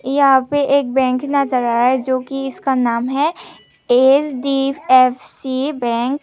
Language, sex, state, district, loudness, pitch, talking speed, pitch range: Hindi, female, Tripura, Unakoti, -16 LUFS, 265 Hz, 145 wpm, 255-275 Hz